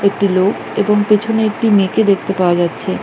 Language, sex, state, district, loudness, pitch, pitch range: Bengali, female, West Bengal, Jhargram, -14 LUFS, 200 Hz, 190-210 Hz